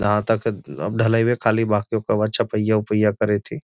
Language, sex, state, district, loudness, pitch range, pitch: Magahi, male, Bihar, Gaya, -21 LUFS, 105-115 Hz, 110 Hz